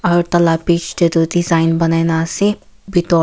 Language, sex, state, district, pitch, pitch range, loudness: Nagamese, female, Nagaland, Kohima, 170 Hz, 165-175 Hz, -15 LUFS